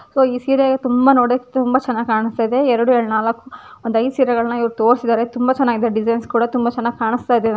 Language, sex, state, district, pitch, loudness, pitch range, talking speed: Kannada, female, Karnataka, Dharwad, 240 Hz, -17 LUFS, 230-255 Hz, 150 wpm